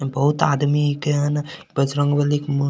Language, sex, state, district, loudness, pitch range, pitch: Maithili, male, Bihar, Supaul, -20 LUFS, 140-145 Hz, 145 Hz